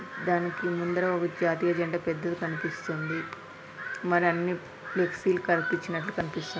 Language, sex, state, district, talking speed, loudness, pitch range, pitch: Telugu, female, Andhra Pradesh, Anantapur, 110 wpm, -29 LUFS, 170-180 Hz, 175 Hz